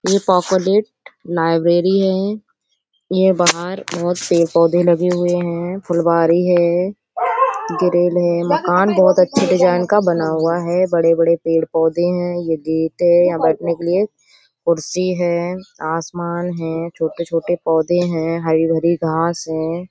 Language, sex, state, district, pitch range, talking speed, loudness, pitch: Hindi, female, Uttar Pradesh, Budaun, 165-180 Hz, 125 wpm, -17 LUFS, 175 Hz